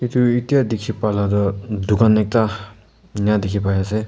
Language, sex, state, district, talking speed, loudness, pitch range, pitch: Nagamese, male, Nagaland, Kohima, 145 wpm, -19 LUFS, 100-110 Hz, 105 Hz